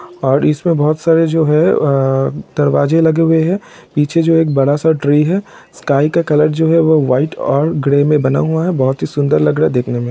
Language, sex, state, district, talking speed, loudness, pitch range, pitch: Hindi, male, Jharkhand, Sahebganj, 230 wpm, -13 LUFS, 140-165 Hz, 150 Hz